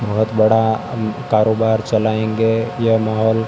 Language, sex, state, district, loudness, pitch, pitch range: Hindi, male, Rajasthan, Barmer, -17 LUFS, 110 Hz, 110-115 Hz